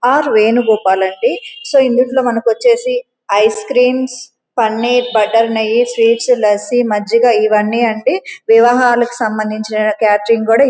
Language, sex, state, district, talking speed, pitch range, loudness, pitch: Telugu, female, Andhra Pradesh, Guntur, 120 wpm, 215-250 Hz, -13 LUFS, 230 Hz